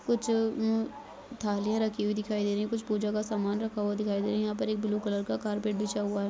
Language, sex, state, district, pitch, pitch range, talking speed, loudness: Hindi, female, Bihar, Begusarai, 210 Hz, 205-220 Hz, 275 wpm, -31 LUFS